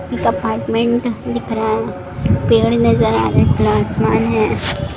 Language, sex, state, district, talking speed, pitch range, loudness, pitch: Hindi, female, Bihar, Darbhanga, 155 wpm, 110-135 Hz, -16 LUFS, 115 Hz